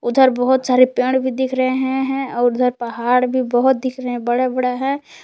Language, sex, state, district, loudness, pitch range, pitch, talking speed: Hindi, female, Jharkhand, Palamu, -17 LUFS, 250-260 Hz, 255 Hz, 205 wpm